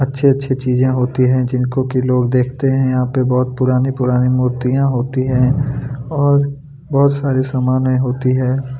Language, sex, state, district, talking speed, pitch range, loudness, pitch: Hindi, male, Chhattisgarh, Kabirdham, 150 wpm, 125-135 Hz, -16 LUFS, 130 Hz